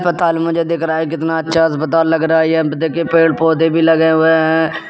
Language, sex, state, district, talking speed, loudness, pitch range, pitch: Hindi, male, Uttar Pradesh, Jyotiba Phule Nagar, 230 wpm, -14 LUFS, 160-165 Hz, 160 Hz